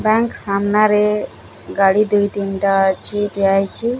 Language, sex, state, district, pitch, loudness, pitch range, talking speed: Odia, male, Odisha, Nuapada, 205 Hz, -16 LUFS, 195-210 Hz, 105 wpm